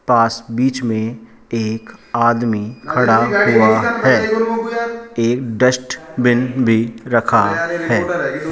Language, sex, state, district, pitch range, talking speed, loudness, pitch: Hindi, male, Rajasthan, Jaipur, 115-145 Hz, 90 wpm, -16 LUFS, 120 Hz